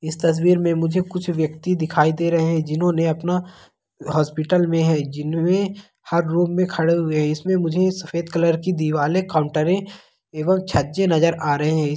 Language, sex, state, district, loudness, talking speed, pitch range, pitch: Hindi, male, Bihar, Begusarai, -20 LUFS, 175 wpm, 155-180 Hz, 165 Hz